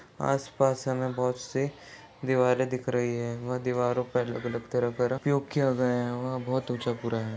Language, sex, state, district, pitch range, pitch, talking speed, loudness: Hindi, male, Chhattisgarh, Balrampur, 120-130 Hz, 125 Hz, 185 wpm, -29 LUFS